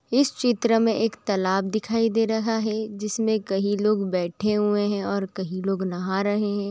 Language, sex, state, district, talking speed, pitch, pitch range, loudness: Magahi, female, Bihar, Gaya, 190 wpm, 210 Hz, 195-225 Hz, -24 LUFS